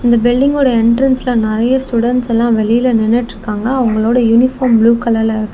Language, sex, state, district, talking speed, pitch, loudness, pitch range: Tamil, female, Tamil Nadu, Kanyakumari, 150 wpm, 235 Hz, -12 LUFS, 225-250 Hz